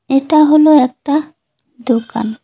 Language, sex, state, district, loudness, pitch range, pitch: Bengali, female, West Bengal, Cooch Behar, -12 LUFS, 240-305 Hz, 270 Hz